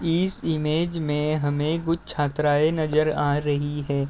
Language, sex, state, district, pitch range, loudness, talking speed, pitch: Hindi, male, Uttar Pradesh, Deoria, 145-160 Hz, -24 LUFS, 145 wpm, 150 Hz